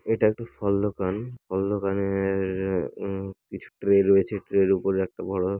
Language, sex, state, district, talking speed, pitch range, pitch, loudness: Bengali, male, West Bengal, Paschim Medinipur, 170 wpm, 95-100 Hz, 95 Hz, -25 LUFS